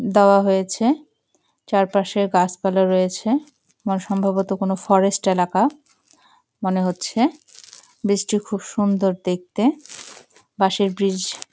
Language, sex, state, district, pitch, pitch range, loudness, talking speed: Bengali, female, West Bengal, Jalpaiguri, 195 Hz, 190-225 Hz, -20 LUFS, 105 wpm